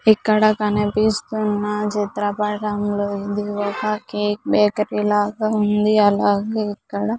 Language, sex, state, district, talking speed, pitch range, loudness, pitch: Telugu, female, Andhra Pradesh, Sri Satya Sai, 100 wpm, 205-215 Hz, -20 LUFS, 210 Hz